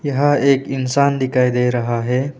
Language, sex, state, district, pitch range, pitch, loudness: Hindi, male, Arunachal Pradesh, Papum Pare, 125-140 Hz, 130 Hz, -17 LUFS